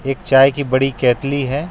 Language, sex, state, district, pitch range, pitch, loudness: Hindi, male, Jharkhand, Ranchi, 135-140 Hz, 135 Hz, -16 LUFS